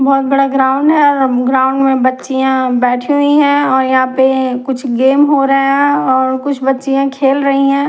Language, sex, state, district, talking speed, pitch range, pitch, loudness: Hindi, female, Punjab, Fazilka, 190 wpm, 260-275 Hz, 270 Hz, -12 LUFS